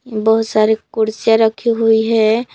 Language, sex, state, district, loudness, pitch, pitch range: Hindi, female, Jharkhand, Palamu, -15 LUFS, 225 Hz, 220-225 Hz